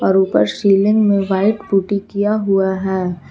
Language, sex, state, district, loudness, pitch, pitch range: Hindi, female, Jharkhand, Palamu, -16 LUFS, 195 Hz, 190-205 Hz